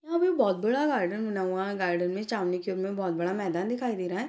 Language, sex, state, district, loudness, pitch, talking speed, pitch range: Hindi, female, Bihar, Purnia, -29 LUFS, 195 Hz, 250 wpm, 180-235 Hz